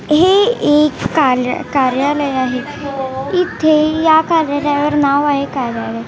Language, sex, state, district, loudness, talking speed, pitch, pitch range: Marathi, female, Maharashtra, Washim, -14 LUFS, 110 wpm, 290 Hz, 265-310 Hz